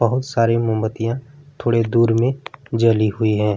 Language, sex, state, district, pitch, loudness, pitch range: Hindi, male, Bihar, Vaishali, 115 Hz, -19 LUFS, 110-125 Hz